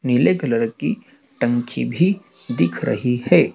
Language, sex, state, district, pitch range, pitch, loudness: Hindi, male, Madhya Pradesh, Dhar, 120-195 Hz, 125 Hz, -20 LUFS